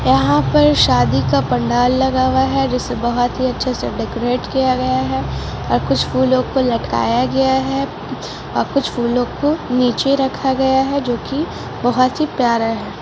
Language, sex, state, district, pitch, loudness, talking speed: Hindi, female, Bihar, Gopalganj, 250 Hz, -17 LUFS, 180 wpm